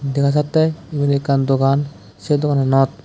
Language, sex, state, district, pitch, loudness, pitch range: Chakma, male, Tripura, West Tripura, 140 Hz, -17 LUFS, 135-150 Hz